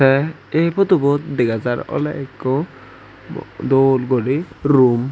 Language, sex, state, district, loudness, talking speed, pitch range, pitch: Chakma, male, Tripura, Unakoti, -18 LUFS, 115 wpm, 130-145 Hz, 135 Hz